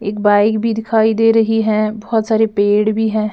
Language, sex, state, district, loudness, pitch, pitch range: Hindi, female, Bihar, Patna, -15 LUFS, 220 Hz, 215-225 Hz